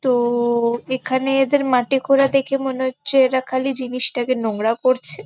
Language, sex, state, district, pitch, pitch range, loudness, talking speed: Bengali, female, West Bengal, Kolkata, 260 Hz, 250-270 Hz, -19 LUFS, 160 wpm